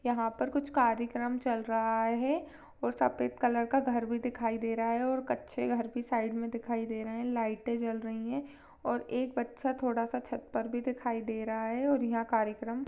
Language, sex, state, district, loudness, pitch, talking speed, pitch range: Hindi, female, Chhattisgarh, Sarguja, -33 LUFS, 235 Hz, 215 wpm, 225-250 Hz